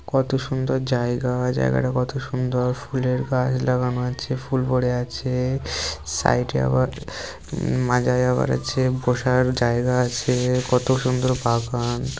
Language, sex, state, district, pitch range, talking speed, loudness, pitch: Bengali, male, West Bengal, North 24 Parganas, 120-130 Hz, 120 wpm, -22 LUFS, 125 Hz